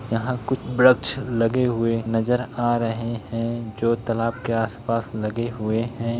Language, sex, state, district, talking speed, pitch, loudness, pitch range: Hindi, male, Bihar, Begusarai, 165 wpm, 115 Hz, -23 LUFS, 115-120 Hz